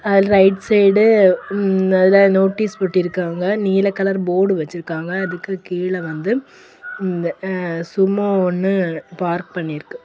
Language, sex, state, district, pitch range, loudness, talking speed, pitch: Tamil, female, Tamil Nadu, Kanyakumari, 180-195 Hz, -17 LUFS, 115 wpm, 190 Hz